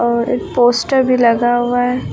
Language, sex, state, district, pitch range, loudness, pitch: Hindi, female, Uttar Pradesh, Lucknow, 235-250 Hz, -14 LUFS, 240 Hz